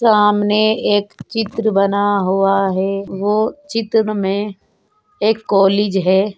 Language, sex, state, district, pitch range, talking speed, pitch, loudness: Hindi, female, Uttar Pradesh, Ghazipur, 195-220 Hz, 115 wpm, 205 Hz, -16 LUFS